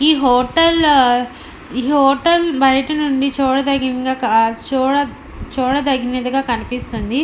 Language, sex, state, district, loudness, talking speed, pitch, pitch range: Telugu, female, Andhra Pradesh, Anantapur, -16 LUFS, 90 wpm, 270 Hz, 255-285 Hz